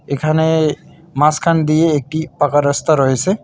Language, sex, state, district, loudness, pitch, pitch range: Bengali, male, West Bengal, Alipurduar, -15 LUFS, 155 Hz, 145-160 Hz